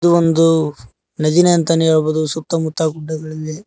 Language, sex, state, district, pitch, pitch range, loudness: Kannada, male, Karnataka, Koppal, 160 Hz, 155-165 Hz, -16 LUFS